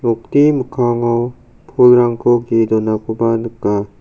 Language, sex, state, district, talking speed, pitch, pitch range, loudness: Garo, male, Meghalaya, South Garo Hills, 90 wpm, 120 Hz, 115-120 Hz, -15 LUFS